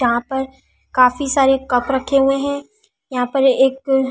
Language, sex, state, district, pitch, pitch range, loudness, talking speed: Hindi, female, Delhi, New Delhi, 265 Hz, 260-275 Hz, -17 LUFS, 160 wpm